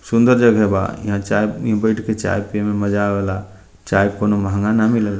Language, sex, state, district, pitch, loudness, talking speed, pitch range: Bhojpuri, male, Bihar, Muzaffarpur, 105 Hz, -17 LUFS, 220 wpm, 100-110 Hz